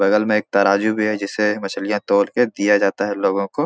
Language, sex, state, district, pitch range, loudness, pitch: Hindi, male, Bihar, Supaul, 100-105 Hz, -18 LUFS, 105 Hz